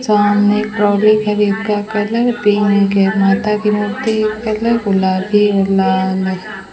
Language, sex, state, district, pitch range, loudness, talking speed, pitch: Hindi, female, Rajasthan, Bikaner, 195-215 Hz, -14 LUFS, 140 wpm, 210 Hz